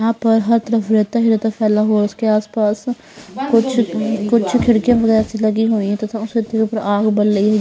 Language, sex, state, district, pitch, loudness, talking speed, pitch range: Hindi, female, Bihar, Patna, 220 Hz, -16 LUFS, 205 wpm, 215-230 Hz